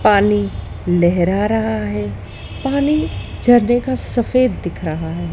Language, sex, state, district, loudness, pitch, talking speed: Hindi, female, Madhya Pradesh, Dhar, -17 LUFS, 175 Hz, 125 wpm